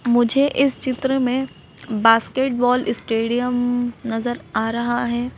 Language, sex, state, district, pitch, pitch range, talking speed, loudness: Hindi, female, Madhya Pradesh, Bhopal, 245 Hz, 235-260 Hz, 110 wpm, -19 LUFS